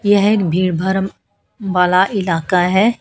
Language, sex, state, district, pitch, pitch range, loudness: Hindi, female, Haryana, Charkhi Dadri, 190 Hz, 180-200 Hz, -15 LUFS